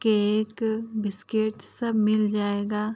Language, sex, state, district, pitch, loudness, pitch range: Hindi, female, Uttar Pradesh, Ghazipur, 215 Hz, -26 LUFS, 210-220 Hz